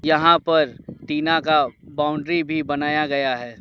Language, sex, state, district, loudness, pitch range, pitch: Hindi, male, West Bengal, Alipurduar, -20 LUFS, 145-160 Hz, 150 Hz